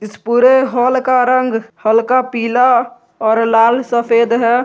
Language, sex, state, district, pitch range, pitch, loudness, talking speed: Hindi, male, Jharkhand, Garhwa, 230-250 Hz, 240 Hz, -13 LUFS, 140 wpm